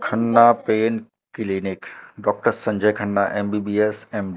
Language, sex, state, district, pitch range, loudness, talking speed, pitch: Hindi, male, Madhya Pradesh, Katni, 105-110 Hz, -20 LUFS, 110 wpm, 105 Hz